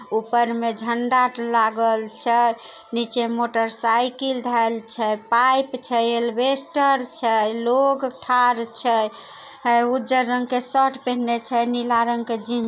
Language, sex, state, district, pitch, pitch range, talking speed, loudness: Maithili, female, Bihar, Samastipur, 235 Hz, 230-255 Hz, 130 wpm, -21 LUFS